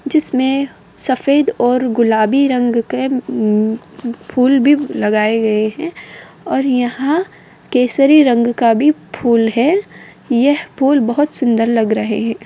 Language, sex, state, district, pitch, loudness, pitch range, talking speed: Hindi, female, Bihar, Purnia, 250 Hz, -14 LUFS, 230-280 Hz, 135 wpm